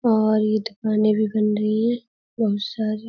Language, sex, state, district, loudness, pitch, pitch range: Hindi, female, Uttar Pradesh, Budaun, -22 LUFS, 215 Hz, 215-225 Hz